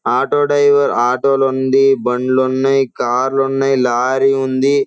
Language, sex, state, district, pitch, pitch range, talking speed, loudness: Telugu, male, Andhra Pradesh, Guntur, 135 Hz, 130-135 Hz, 110 wpm, -14 LUFS